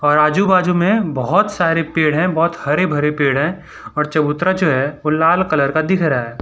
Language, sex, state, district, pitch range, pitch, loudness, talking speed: Hindi, male, Gujarat, Valsad, 150-180 Hz, 160 Hz, -16 LUFS, 225 wpm